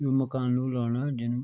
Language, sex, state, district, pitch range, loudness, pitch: Garhwali, male, Uttarakhand, Tehri Garhwal, 120-135 Hz, -28 LUFS, 125 Hz